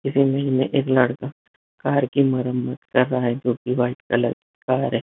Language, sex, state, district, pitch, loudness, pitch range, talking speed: Hindi, male, Bihar, Jamui, 130 Hz, -22 LUFS, 125-135 Hz, 210 wpm